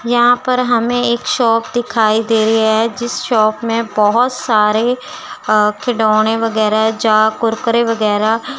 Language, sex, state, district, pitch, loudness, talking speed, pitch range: Hindi, female, Chandigarh, Chandigarh, 230 Hz, -14 LUFS, 140 wpm, 220-245 Hz